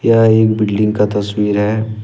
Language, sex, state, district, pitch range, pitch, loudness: Hindi, male, Jharkhand, Ranchi, 105-110 Hz, 105 Hz, -14 LUFS